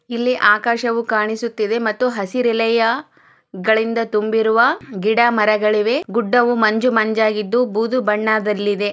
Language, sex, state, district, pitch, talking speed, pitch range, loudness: Kannada, female, Karnataka, Chamarajanagar, 220 Hz, 80 wpm, 215-235 Hz, -17 LUFS